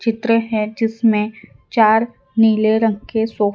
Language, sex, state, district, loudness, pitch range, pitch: Hindi, female, Gujarat, Valsad, -17 LUFS, 215-225 Hz, 220 Hz